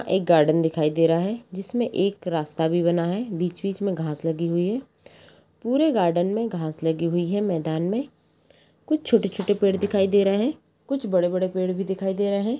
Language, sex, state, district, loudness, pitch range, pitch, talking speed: Hindi, female, Chhattisgarh, Balrampur, -23 LUFS, 170-205 Hz, 190 Hz, 215 wpm